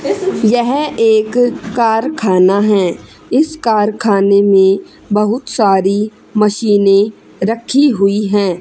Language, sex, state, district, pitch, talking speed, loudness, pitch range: Hindi, female, Haryana, Charkhi Dadri, 210 Hz, 90 wpm, -13 LUFS, 200-230 Hz